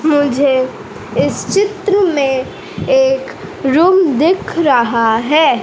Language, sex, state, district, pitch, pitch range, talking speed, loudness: Hindi, female, Madhya Pradesh, Dhar, 305 Hz, 265-380 Hz, 95 wpm, -13 LUFS